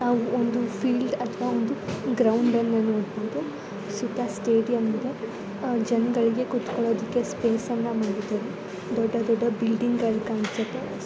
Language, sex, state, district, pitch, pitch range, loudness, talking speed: Kannada, female, Karnataka, Gulbarga, 230 Hz, 220-240 Hz, -26 LUFS, 100 wpm